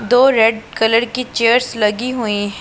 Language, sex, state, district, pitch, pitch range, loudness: Hindi, female, Punjab, Pathankot, 230 Hz, 225-245 Hz, -15 LUFS